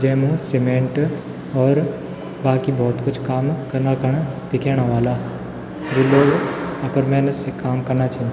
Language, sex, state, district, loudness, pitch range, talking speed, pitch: Garhwali, male, Uttarakhand, Tehri Garhwal, -20 LUFS, 130-140 Hz, 135 wpm, 130 Hz